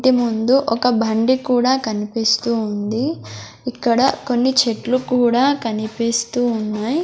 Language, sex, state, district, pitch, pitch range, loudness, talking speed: Telugu, female, Andhra Pradesh, Sri Satya Sai, 240 Hz, 225-255 Hz, -18 LUFS, 100 wpm